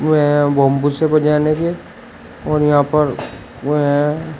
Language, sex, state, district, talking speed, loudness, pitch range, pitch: Hindi, male, Uttar Pradesh, Shamli, 95 wpm, -16 LUFS, 145-155 Hz, 150 Hz